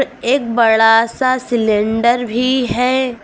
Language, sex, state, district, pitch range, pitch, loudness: Hindi, female, Uttar Pradesh, Lucknow, 225-255 Hz, 240 Hz, -14 LUFS